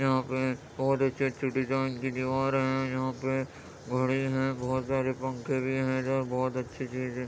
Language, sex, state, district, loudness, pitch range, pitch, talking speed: Hindi, male, Uttar Pradesh, Jyotiba Phule Nagar, -30 LUFS, 130-135 Hz, 130 Hz, 180 wpm